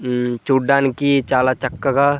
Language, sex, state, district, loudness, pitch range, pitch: Telugu, male, Andhra Pradesh, Sri Satya Sai, -17 LUFS, 130-140 Hz, 135 Hz